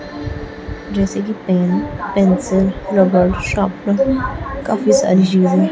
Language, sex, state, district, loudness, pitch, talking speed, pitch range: Hindi, female, Chhattisgarh, Raipur, -16 LUFS, 185 Hz, 95 wpm, 145-190 Hz